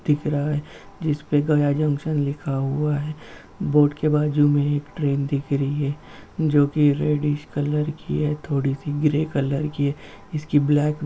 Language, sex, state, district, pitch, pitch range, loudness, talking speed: Hindi, male, Bihar, Gaya, 145 Hz, 145-150 Hz, -22 LUFS, 170 wpm